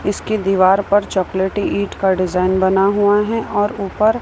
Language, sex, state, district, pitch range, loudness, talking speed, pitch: Hindi, female, Maharashtra, Mumbai Suburban, 190-205 Hz, -16 LUFS, 170 wpm, 200 Hz